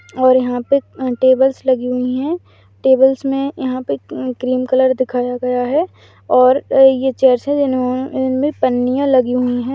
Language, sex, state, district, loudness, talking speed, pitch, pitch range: Hindi, female, Rajasthan, Churu, -15 LUFS, 140 wpm, 260 Hz, 250-270 Hz